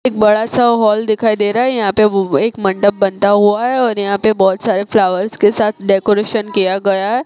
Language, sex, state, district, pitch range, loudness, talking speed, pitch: Hindi, female, Gujarat, Gandhinagar, 200-220 Hz, -13 LUFS, 230 wpm, 210 Hz